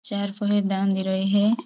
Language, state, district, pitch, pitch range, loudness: Bhili, Maharashtra, Dhule, 200 Hz, 195-205 Hz, -23 LUFS